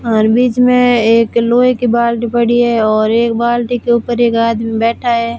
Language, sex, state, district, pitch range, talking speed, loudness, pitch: Hindi, female, Rajasthan, Barmer, 230-240 Hz, 200 wpm, -12 LUFS, 235 Hz